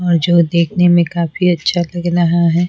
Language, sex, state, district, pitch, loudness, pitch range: Hindi, female, Bihar, Patna, 170 Hz, -14 LUFS, 170-175 Hz